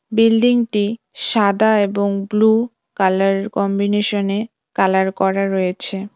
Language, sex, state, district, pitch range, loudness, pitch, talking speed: Bengali, female, West Bengal, Cooch Behar, 195-220 Hz, -17 LUFS, 200 Hz, 90 wpm